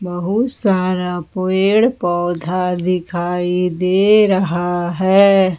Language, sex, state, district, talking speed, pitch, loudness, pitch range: Hindi, female, Jharkhand, Ranchi, 85 wpm, 185 Hz, -16 LUFS, 175-195 Hz